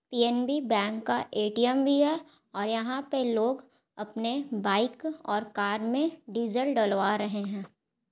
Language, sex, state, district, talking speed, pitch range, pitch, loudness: Hindi, female, Bihar, Gaya, 150 wpm, 210-265 Hz, 230 Hz, -29 LUFS